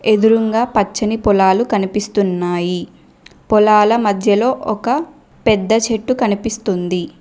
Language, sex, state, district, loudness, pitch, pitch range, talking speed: Telugu, female, Telangana, Mahabubabad, -15 LUFS, 215 Hz, 200-225 Hz, 85 wpm